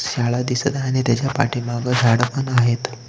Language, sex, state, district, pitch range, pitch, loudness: Marathi, male, Maharashtra, Solapur, 120-130 Hz, 125 Hz, -19 LUFS